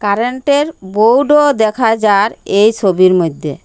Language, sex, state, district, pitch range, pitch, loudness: Bengali, female, Assam, Hailakandi, 195-250 Hz, 215 Hz, -12 LUFS